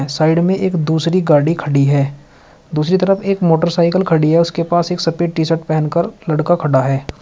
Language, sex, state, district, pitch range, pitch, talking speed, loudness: Hindi, male, Uttar Pradesh, Shamli, 155-175 Hz, 165 Hz, 200 wpm, -15 LUFS